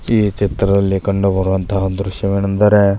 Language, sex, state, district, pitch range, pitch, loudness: Kannada, male, Karnataka, Belgaum, 95-100 Hz, 100 Hz, -16 LUFS